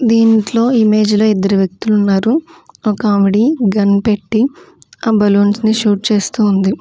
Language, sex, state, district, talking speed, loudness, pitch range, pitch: Telugu, female, Andhra Pradesh, Manyam, 150 wpm, -13 LUFS, 205-230 Hz, 215 Hz